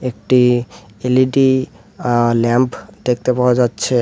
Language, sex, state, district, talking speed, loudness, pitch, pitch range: Bengali, male, West Bengal, Alipurduar, 105 wpm, -16 LUFS, 125 Hz, 120-125 Hz